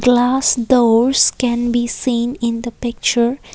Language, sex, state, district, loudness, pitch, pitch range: English, female, Assam, Kamrup Metropolitan, -16 LUFS, 240 Hz, 235-250 Hz